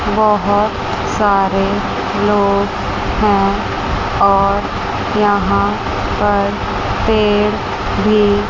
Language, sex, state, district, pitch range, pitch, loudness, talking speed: Hindi, female, Chandigarh, Chandigarh, 195-210 Hz, 200 Hz, -15 LUFS, 65 wpm